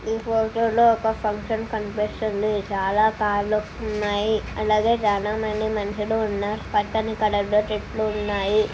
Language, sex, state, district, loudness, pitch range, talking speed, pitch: Telugu, female, Telangana, Nalgonda, -23 LUFS, 210-220 Hz, 125 wpm, 215 Hz